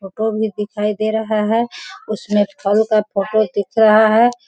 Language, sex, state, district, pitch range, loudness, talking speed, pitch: Hindi, female, Bihar, Sitamarhi, 210-220 Hz, -17 LUFS, 175 wpm, 215 Hz